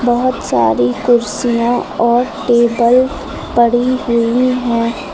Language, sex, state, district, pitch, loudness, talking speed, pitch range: Hindi, female, Uttar Pradesh, Lucknow, 240 Hz, -14 LUFS, 95 wpm, 235-250 Hz